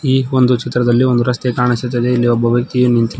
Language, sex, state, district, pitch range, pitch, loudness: Kannada, male, Karnataka, Koppal, 120-125 Hz, 125 Hz, -14 LUFS